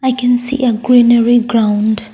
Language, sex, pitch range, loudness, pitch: English, female, 225-245 Hz, -12 LUFS, 240 Hz